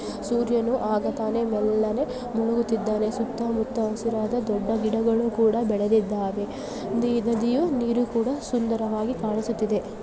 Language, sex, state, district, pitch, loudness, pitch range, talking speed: Kannada, female, Karnataka, Gulbarga, 225 Hz, -25 LUFS, 215-235 Hz, 115 wpm